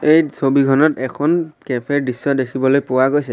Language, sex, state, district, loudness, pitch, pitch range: Assamese, male, Assam, Sonitpur, -17 LUFS, 140 Hz, 130-150 Hz